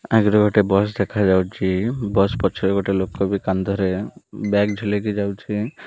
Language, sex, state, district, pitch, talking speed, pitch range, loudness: Odia, male, Odisha, Malkangiri, 100 Hz, 135 wpm, 95-105 Hz, -20 LUFS